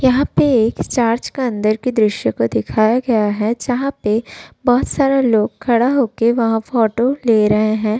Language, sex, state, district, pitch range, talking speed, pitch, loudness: Hindi, female, Uttar Pradesh, Budaun, 215-250 Hz, 180 wpm, 230 Hz, -16 LUFS